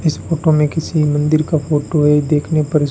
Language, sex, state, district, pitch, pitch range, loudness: Hindi, male, Rajasthan, Bikaner, 155 Hz, 150-160 Hz, -15 LUFS